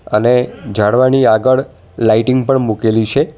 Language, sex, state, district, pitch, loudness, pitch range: Gujarati, male, Gujarat, Valsad, 120 Hz, -13 LUFS, 110-130 Hz